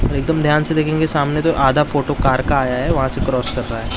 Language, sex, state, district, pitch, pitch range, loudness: Hindi, male, Maharashtra, Mumbai Suburban, 140 Hz, 130-150 Hz, -17 LUFS